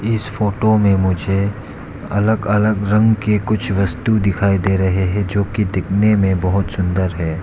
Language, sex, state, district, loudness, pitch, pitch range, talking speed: Hindi, male, Arunachal Pradesh, Lower Dibang Valley, -17 LUFS, 100 Hz, 95-105 Hz, 170 wpm